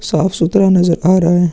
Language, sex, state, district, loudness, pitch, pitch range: Hindi, male, Uttar Pradesh, Muzaffarnagar, -12 LUFS, 180 Hz, 170-190 Hz